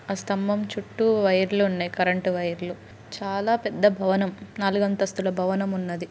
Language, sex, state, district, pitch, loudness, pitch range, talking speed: Telugu, female, Andhra Pradesh, Guntur, 195 Hz, -24 LUFS, 185-205 Hz, 135 wpm